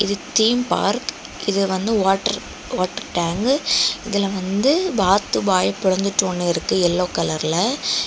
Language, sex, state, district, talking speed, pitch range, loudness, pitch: Tamil, female, Tamil Nadu, Kanyakumari, 125 wpm, 180-215 Hz, -20 LUFS, 195 Hz